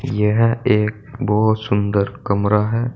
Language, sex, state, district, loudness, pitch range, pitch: Hindi, male, Uttar Pradesh, Saharanpur, -18 LUFS, 105-115 Hz, 105 Hz